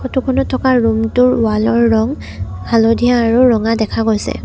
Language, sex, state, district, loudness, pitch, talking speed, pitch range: Assamese, female, Assam, Sonitpur, -14 LUFS, 230 Hz, 175 wpm, 220-250 Hz